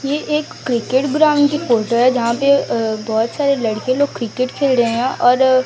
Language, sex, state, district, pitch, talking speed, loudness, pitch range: Hindi, female, Odisha, Sambalpur, 255 Hz, 200 wpm, -16 LUFS, 235-280 Hz